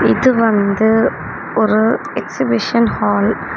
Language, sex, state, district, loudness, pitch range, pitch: Tamil, female, Tamil Nadu, Namakkal, -15 LUFS, 205-230 Hz, 220 Hz